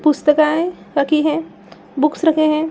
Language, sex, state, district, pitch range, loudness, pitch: Hindi, female, Bihar, Saran, 300-315 Hz, -17 LUFS, 305 Hz